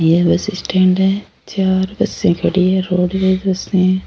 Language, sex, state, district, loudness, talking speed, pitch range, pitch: Rajasthani, female, Rajasthan, Churu, -16 LUFS, 160 wpm, 180-190 Hz, 185 Hz